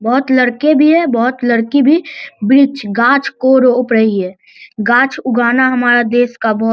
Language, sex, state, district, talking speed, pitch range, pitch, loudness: Hindi, male, Bihar, Lakhisarai, 180 wpm, 230-265 Hz, 245 Hz, -12 LUFS